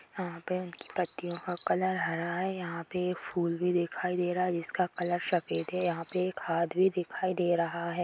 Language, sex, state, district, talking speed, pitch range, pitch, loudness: Bhojpuri, female, Bihar, Saran, 215 wpm, 170-180 Hz, 175 Hz, -30 LUFS